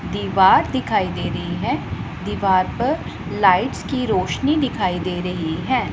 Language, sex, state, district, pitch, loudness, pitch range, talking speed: Hindi, female, Punjab, Pathankot, 185 Hz, -20 LUFS, 180-255 Hz, 140 wpm